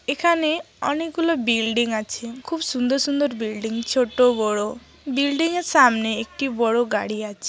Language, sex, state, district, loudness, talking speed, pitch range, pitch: Bengali, female, West Bengal, Jhargram, -22 LUFS, 145 wpm, 225-300 Hz, 250 Hz